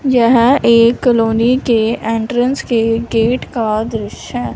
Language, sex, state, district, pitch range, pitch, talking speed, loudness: Hindi, female, Punjab, Fazilka, 225-245 Hz, 235 Hz, 130 wpm, -14 LUFS